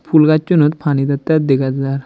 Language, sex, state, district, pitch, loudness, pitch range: Chakma, male, Tripura, Dhalai, 145 Hz, -14 LUFS, 135-155 Hz